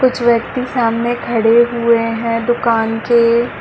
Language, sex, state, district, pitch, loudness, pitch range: Hindi, female, Chhattisgarh, Bilaspur, 235 Hz, -14 LUFS, 230-240 Hz